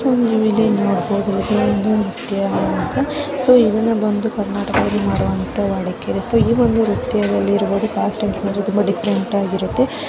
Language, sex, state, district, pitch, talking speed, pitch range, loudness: Kannada, female, Karnataka, Dharwad, 210 Hz, 115 wpm, 200-225 Hz, -18 LUFS